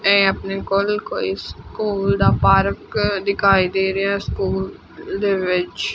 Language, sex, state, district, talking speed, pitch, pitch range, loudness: Punjabi, female, Punjab, Fazilka, 140 wpm, 195 Hz, 190-200 Hz, -19 LUFS